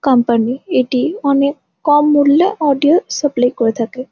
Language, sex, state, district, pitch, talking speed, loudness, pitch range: Bengali, female, West Bengal, Jhargram, 280 Hz, 145 wpm, -14 LUFS, 250-295 Hz